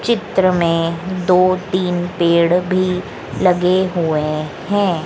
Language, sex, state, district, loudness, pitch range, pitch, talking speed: Hindi, female, Madhya Pradesh, Dhar, -16 LUFS, 170-185 Hz, 180 Hz, 105 wpm